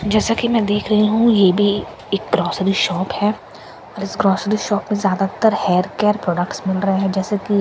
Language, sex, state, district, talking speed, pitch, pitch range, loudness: Hindi, female, Bihar, Katihar, 205 wpm, 205 Hz, 195-210 Hz, -18 LUFS